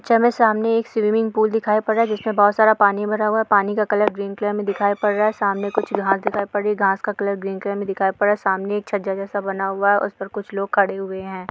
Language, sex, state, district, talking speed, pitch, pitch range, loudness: Hindi, female, Jharkhand, Sahebganj, 295 wpm, 205 Hz, 195-215 Hz, -20 LUFS